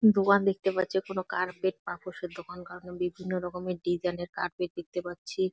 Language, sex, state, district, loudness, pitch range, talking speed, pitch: Bengali, female, West Bengal, Jalpaiguri, -31 LUFS, 180-190 Hz, 165 wpm, 180 Hz